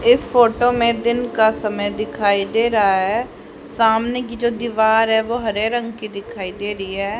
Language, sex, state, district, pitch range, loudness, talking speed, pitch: Hindi, female, Haryana, Jhajjar, 205-235 Hz, -18 LUFS, 190 wpm, 220 Hz